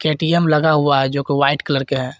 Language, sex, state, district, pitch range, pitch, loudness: Hindi, male, Jharkhand, Garhwa, 140-155 Hz, 145 Hz, -17 LUFS